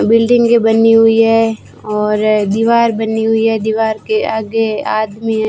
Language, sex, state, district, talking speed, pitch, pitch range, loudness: Hindi, female, Rajasthan, Bikaner, 155 wpm, 225 Hz, 220-225 Hz, -13 LUFS